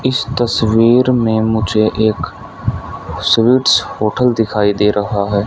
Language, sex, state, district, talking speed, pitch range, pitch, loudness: Hindi, male, Haryana, Rohtak, 120 wpm, 100-120 Hz, 110 Hz, -14 LUFS